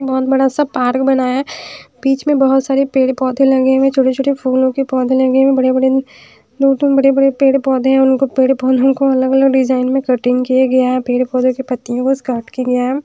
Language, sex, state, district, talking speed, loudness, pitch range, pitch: Hindi, female, Haryana, Rohtak, 225 wpm, -14 LUFS, 255-270 Hz, 265 Hz